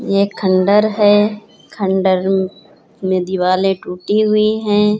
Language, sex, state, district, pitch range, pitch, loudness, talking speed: Hindi, female, Uttar Pradesh, Hamirpur, 190-210 Hz, 200 Hz, -15 LUFS, 110 wpm